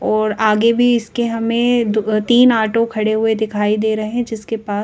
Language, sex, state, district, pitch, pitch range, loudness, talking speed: Hindi, female, Madhya Pradesh, Bhopal, 220 Hz, 215-235 Hz, -16 LUFS, 185 wpm